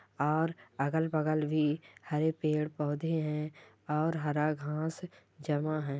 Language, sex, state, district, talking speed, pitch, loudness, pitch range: Hindi, male, Chhattisgarh, Sukma, 120 wpm, 155 Hz, -33 LUFS, 150-160 Hz